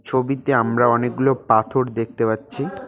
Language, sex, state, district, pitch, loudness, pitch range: Bengali, male, West Bengal, Cooch Behar, 130 Hz, -20 LUFS, 115-135 Hz